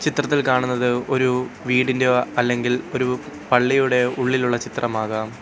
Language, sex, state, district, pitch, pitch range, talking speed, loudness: Malayalam, male, Kerala, Kollam, 125 Hz, 125-130 Hz, 100 wpm, -20 LUFS